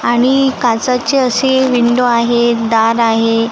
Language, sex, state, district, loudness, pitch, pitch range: Marathi, female, Maharashtra, Gondia, -12 LUFS, 240 Hz, 230-255 Hz